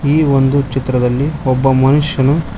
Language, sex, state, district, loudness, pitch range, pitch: Kannada, male, Karnataka, Koppal, -13 LUFS, 130-145 Hz, 135 Hz